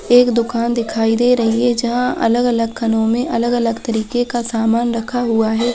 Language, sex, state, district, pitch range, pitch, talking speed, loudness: Hindi, female, Chhattisgarh, Balrampur, 225-240 Hz, 235 Hz, 175 wpm, -16 LUFS